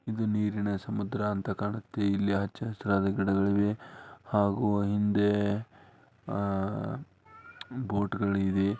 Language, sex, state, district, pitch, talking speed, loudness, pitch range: Kannada, male, Karnataka, Dharwad, 100 Hz, 100 wpm, -30 LUFS, 100-105 Hz